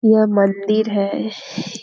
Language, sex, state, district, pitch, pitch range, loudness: Hindi, female, Bihar, Muzaffarpur, 215 Hz, 200-220 Hz, -18 LUFS